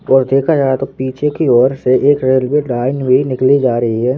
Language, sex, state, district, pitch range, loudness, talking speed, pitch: Hindi, male, Madhya Pradesh, Bhopal, 130-140 Hz, -13 LUFS, 230 wpm, 130 Hz